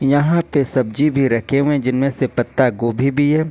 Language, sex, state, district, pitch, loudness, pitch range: Hindi, male, Jharkhand, Ranchi, 135 Hz, -17 LUFS, 130-145 Hz